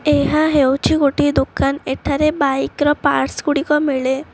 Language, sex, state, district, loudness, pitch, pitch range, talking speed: Odia, female, Odisha, Khordha, -17 LUFS, 290 Hz, 275-300 Hz, 140 wpm